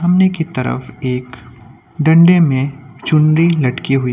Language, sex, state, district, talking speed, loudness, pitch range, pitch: Hindi, male, Uttar Pradesh, Lucknow, 145 wpm, -14 LUFS, 130-165 Hz, 140 Hz